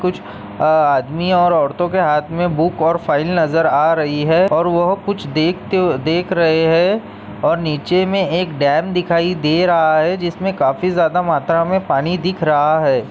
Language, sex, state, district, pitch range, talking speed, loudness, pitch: Hindi, male, Maharashtra, Solapur, 155-180 Hz, 185 wpm, -16 LUFS, 170 Hz